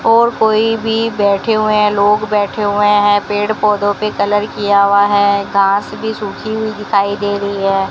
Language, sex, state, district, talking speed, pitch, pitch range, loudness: Hindi, female, Rajasthan, Bikaner, 190 wpm, 205 Hz, 200-215 Hz, -14 LUFS